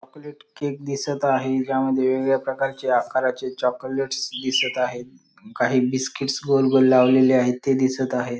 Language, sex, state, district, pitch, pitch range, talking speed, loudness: Marathi, male, Maharashtra, Sindhudurg, 130 Hz, 130-135 Hz, 145 wpm, -21 LUFS